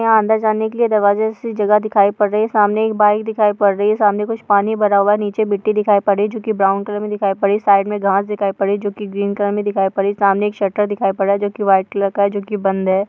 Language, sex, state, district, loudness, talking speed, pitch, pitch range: Hindi, female, Bihar, Darbhanga, -16 LUFS, 340 wpm, 205 Hz, 200-210 Hz